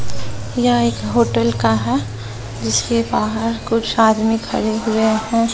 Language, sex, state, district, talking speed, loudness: Hindi, female, Bihar, West Champaran, 130 wpm, -17 LUFS